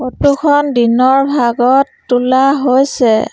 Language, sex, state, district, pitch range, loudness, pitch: Assamese, female, Assam, Sonitpur, 245-280 Hz, -12 LUFS, 260 Hz